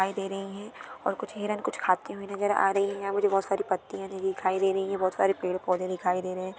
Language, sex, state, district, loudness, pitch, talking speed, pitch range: Hindi, female, Maharashtra, Dhule, -29 LUFS, 195 Hz, 265 wpm, 185-200 Hz